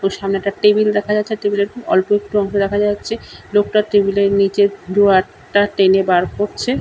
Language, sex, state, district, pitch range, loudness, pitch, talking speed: Bengali, male, West Bengal, Kolkata, 195-210 Hz, -16 LUFS, 205 Hz, 195 wpm